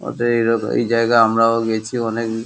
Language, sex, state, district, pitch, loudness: Bengali, male, West Bengal, Kolkata, 115 Hz, -17 LUFS